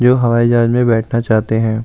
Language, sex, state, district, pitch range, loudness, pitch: Hindi, male, Delhi, New Delhi, 110-120 Hz, -14 LUFS, 115 Hz